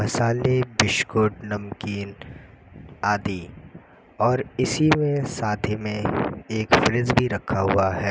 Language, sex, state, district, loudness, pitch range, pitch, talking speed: Hindi, male, Uttar Pradesh, Lucknow, -23 LUFS, 100-125 Hz, 110 Hz, 120 wpm